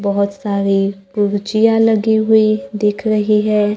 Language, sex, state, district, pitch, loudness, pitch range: Hindi, female, Maharashtra, Gondia, 210 Hz, -15 LUFS, 200-215 Hz